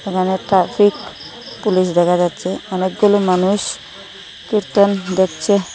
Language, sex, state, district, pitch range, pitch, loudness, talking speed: Bengali, female, Assam, Hailakandi, 185-205 Hz, 190 Hz, -16 LUFS, 115 wpm